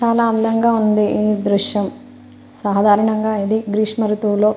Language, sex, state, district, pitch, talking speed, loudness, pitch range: Telugu, female, Telangana, Nalgonda, 215 Hz, 105 wpm, -17 LUFS, 205-220 Hz